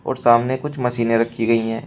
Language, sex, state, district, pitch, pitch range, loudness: Hindi, male, Uttar Pradesh, Shamli, 120 Hz, 115-125 Hz, -19 LUFS